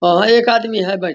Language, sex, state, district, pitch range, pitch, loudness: Hindi, male, Bihar, Vaishali, 180-230 Hz, 195 Hz, -14 LUFS